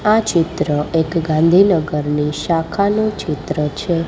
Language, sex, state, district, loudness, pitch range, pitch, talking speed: Gujarati, female, Gujarat, Gandhinagar, -17 LUFS, 150-195 Hz, 165 Hz, 105 wpm